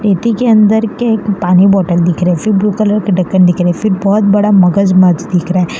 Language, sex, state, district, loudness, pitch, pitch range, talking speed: Hindi, female, Gujarat, Valsad, -11 LUFS, 195 Hz, 180-210 Hz, 240 wpm